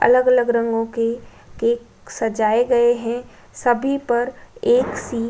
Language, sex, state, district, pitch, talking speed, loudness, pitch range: Hindi, female, Uttar Pradesh, Budaun, 240 Hz, 135 wpm, -20 LUFS, 230-255 Hz